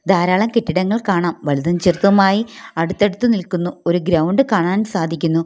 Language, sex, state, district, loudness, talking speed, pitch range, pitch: Malayalam, female, Kerala, Kollam, -17 LUFS, 120 wpm, 170-205 Hz, 185 Hz